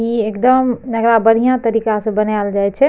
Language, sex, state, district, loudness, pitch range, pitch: Maithili, female, Bihar, Madhepura, -15 LUFS, 215-245 Hz, 225 Hz